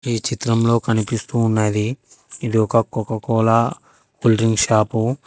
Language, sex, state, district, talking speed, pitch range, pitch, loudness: Telugu, female, Telangana, Hyderabad, 125 wpm, 110-115 Hz, 115 Hz, -19 LUFS